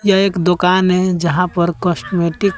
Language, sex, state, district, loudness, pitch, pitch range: Hindi, male, Bihar, West Champaran, -15 LUFS, 180 Hz, 175-190 Hz